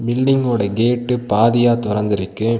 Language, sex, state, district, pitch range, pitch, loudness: Tamil, male, Tamil Nadu, Nilgiris, 105-120 Hz, 115 Hz, -17 LUFS